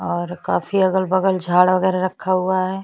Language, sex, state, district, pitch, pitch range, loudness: Hindi, female, Chhattisgarh, Bastar, 185 Hz, 175-190 Hz, -19 LUFS